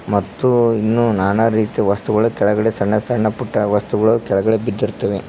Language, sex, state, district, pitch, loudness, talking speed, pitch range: Kannada, male, Karnataka, Koppal, 110 Hz, -17 LUFS, 135 wpm, 105-115 Hz